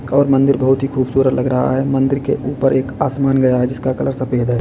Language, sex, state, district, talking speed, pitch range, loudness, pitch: Hindi, male, Uttar Pradesh, Lalitpur, 235 wpm, 130-135 Hz, -16 LUFS, 130 Hz